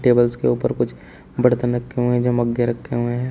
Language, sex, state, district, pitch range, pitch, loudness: Hindi, male, Uttar Pradesh, Shamli, 120-125 Hz, 120 Hz, -20 LUFS